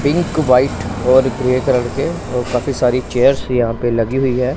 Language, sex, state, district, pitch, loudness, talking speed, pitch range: Hindi, male, Punjab, Pathankot, 125 Hz, -16 LUFS, 210 wpm, 120-135 Hz